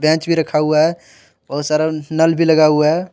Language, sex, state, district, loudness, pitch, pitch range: Hindi, male, Jharkhand, Deoghar, -15 LUFS, 155 Hz, 150-160 Hz